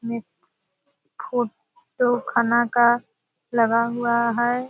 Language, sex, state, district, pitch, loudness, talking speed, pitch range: Hindi, female, Bihar, Araria, 235 Hz, -22 LUFS, 90 wpm, 235-245 Hz